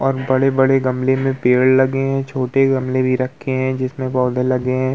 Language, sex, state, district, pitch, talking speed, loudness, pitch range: Hindi, male, Uttar Pradesh, Muzaffarnagar, 130 Hz, 195 wpm, -17 LUFS, 130-135 Hz